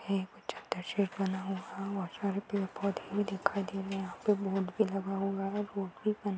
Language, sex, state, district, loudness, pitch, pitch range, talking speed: Hindi, female, Uttar Pradesh, Hamirpur, -35 LUFS, 195 Hz, 195-200 Hz, 215 wpm